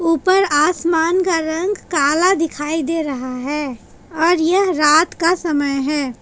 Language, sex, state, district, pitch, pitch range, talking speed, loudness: Hindi, female, Jharkhand, Palamu, 320 Hz, 295-350 Hz, 145 wpm, -17 LUFS